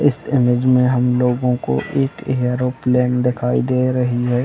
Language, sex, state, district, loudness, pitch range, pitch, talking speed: Hindi, male, Chhattisgarh, Bilaspur, -17 LUFS, 125-130 Hz, 125 Hz, 160 wpm